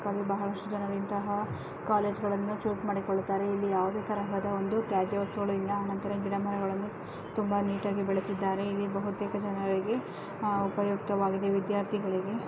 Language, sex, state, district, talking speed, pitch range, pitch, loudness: Kannada, female, Karnataka, Raichur, 130 wpm, 195-205 Hz, 200 Hz, -31 LUFS